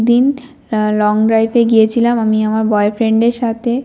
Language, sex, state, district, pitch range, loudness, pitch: Bengali, female, West Bengal, North 24 Parganas, 215-240 Hz, -13 LUFS, 225 Hz